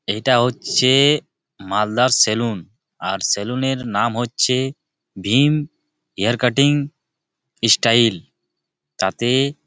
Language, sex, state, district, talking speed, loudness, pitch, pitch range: Bengali, male, West Bengal, Malda, 100 wpm, -18 LUFS, 120 Hz, 110-135 Hz